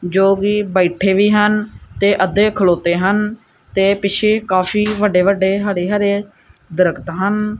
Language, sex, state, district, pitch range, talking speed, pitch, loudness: Punjabi, male, Punjab, Kapurthala, 185-210 Hz, 140 wpm, 200 Hz, -15 LUFS